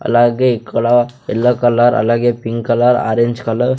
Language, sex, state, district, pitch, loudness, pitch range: Telugu, male, Andhra Pradesh, Sri Satya Sai, 120 Hz, -14 LUFS, 115-120 Hz